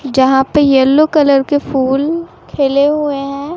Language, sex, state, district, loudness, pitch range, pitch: Hindi, female, Chhattisgarh, Raipur, -12 LUFS, 270-295 Hz, 280 Hz